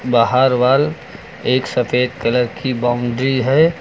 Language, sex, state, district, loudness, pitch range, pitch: Hindi, male, Uttar Pradesh, Lucknow, -16 LUFS, 125-130 Hz, 125 Hz